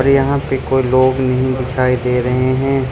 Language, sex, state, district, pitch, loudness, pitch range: Hindi, male, Arunachal Pradesh, Lower Dibang Valley, 130 Hz, -15 LUFS, 130-135 Hz